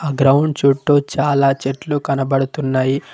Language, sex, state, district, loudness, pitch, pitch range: Telugu, male, Telangana, Mahabubabad, -17 LUFS, 140 Hz, 135-145 Hz